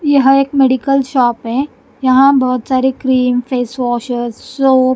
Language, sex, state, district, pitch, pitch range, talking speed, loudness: Hindi, female, Punjab, Kapurthala, 260 Hz, 250-270 Hz, 155 wpm, -13 LUFS